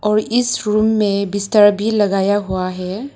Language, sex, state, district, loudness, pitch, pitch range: Hindi, female, Arunachal Pradesh, Lower Dibang Valley, -16 LUFS, 205 Hz, 200-215 Hz